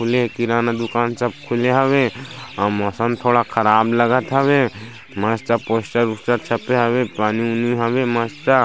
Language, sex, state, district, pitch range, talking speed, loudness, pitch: Chhattisgarhi, male, Chhattisgarh, Sarguja, 115-125 Hz, 155 wpm, -18 LUFS, 120 Hz